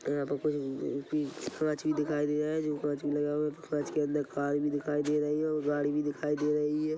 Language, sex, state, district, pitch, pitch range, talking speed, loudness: Hindi, male, Chhattisgarh, Kabirdham, 150 Hz, 145-150 Hz, 250 wpm, -32 LUFS